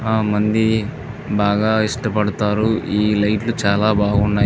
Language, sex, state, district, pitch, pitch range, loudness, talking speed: Telugu, male, Andhra Pradesh, Visakhapatnam, 105 Hz, 105-110 Hz, -18 LUFS, 110 wpm